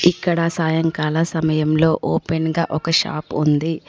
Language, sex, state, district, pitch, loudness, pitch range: Telugu, female, Telangana, Komaram Bheem, 160 Hz, -19 LUFS, 155-165 Hz